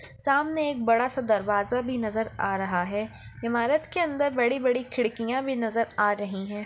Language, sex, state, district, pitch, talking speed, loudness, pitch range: Hindi, female, Maharashtra, Dhule, 235 Hz, 180 wpm, -26 LUFS, 210-265 Hz